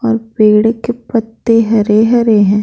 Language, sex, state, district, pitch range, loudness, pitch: Hindi, female, Bihar, Patna, 215-230 Hz, -12 LUFS, 225 Hz